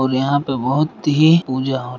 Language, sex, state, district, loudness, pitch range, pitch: Hindi, male, Bihar, Bhagalpur, -17 LUFS, 130-150 Hz, 135 Hz